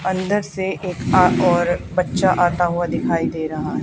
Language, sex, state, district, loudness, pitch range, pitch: Hindi, female, Haryana, Charkhi Dadri, -19 LUFS, 175-185 Hz, 180 Hz